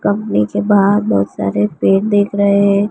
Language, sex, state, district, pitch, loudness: Hindi, female, Gujarat, Gandhinagar, 195 Hz, -14 LUFS